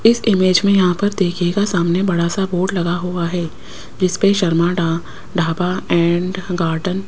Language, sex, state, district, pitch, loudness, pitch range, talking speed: Hindi, female, Rajasthan, Jaipur, 180 Hz, -17 LUFS, 175-190 Hz, 180 wpm